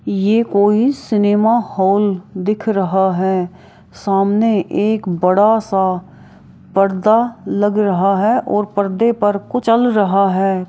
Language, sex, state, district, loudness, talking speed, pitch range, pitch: Hindi, female, Bihar, Kishanganj, -15 LUFS, 125 wpm, 190-215 Hz, 200 Hz